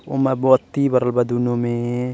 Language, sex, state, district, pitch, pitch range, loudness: Hindi, male, Uttar Pradesh, Ghazipur, 125 Hz, 120-130 Hz, -19 LUFS